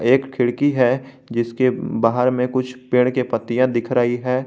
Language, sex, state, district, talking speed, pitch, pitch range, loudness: Hindi, male, Jharkhand, Garhwa, 175 wpm, 125 Hz, 120-130 Hz, -19 LUFS